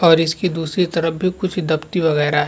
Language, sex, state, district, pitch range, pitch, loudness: Hindi, male, Chhattisgarh, Rajnandgaon, 160-180 Hz, 165 Hz, -19 LUFS